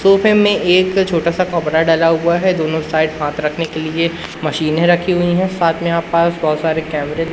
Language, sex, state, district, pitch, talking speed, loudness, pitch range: Hindi, male, Madhya Pradesh, Umaria, 165 Hz, 220 wpm, -15 LUFS, 160-175 Hz